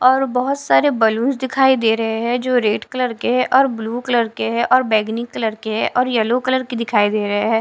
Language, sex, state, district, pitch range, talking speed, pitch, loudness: Hindi, female, Punjab, Fazilka, 225-255 Hz, 245 wpm, 240 Hz, -17 LUFS